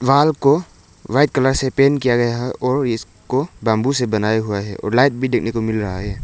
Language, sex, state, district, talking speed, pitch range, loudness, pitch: Hindi, male, Arunachal Pradesh, Lower Dibang Valley, 230 wpm, 110-135 Hz, -18 LUFS, 125 Hz